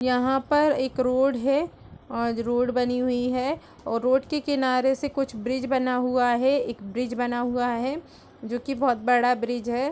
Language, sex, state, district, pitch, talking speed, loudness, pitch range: Hindi, female, Uttar Pradesh, Etah, 250 Hz, 185 wpm, -25 LUFS, 245-270 Hz